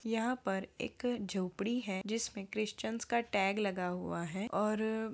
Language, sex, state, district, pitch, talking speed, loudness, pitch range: Hindi, female, Bihar, Begusarai, 215 Hz, 175 wpm, -36 LUFS, 195-230 Hz